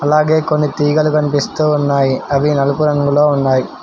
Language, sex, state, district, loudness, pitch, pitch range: Telugu, male, Telangana, Hyderabad, -14 LUFS, 145 Hz, 140-150 Hz